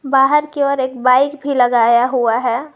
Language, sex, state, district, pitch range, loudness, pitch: Hindi, female, Jharkhand, Garhwa, 245-280 Hz, -15 LUFS, 260 Hz